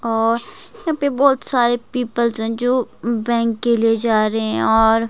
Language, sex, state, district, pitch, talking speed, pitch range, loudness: Hindi, male, Himachal Pradesh, Shimla, 235 Hz, 175 wpm, 225-250 Hz, -18 LUFS